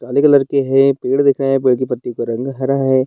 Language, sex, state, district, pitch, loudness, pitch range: Hindi, male, Bihar, Bhagalpur, 135 Hz, -15 LUFS, 125-135 Hz